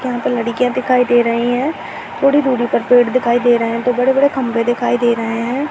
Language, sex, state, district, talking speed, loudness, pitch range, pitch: Hindi, female, Uttar Pradesh, Jyotiba Phule Nagar, 230 wpm, -15 LUFS, 235-255 Hz, 245 Hz